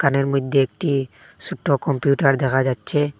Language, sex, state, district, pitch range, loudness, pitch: Bengali, male, Assam, Hailakandi, 135-140 Hz, -20 LUFS, 140 Hz